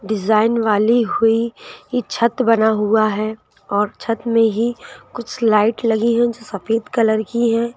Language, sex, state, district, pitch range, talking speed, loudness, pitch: Hindi, female, Madhya Pradesh, Bhopal, 215-235 Hz, 145 wpm, -17 LUFS, 225 Hz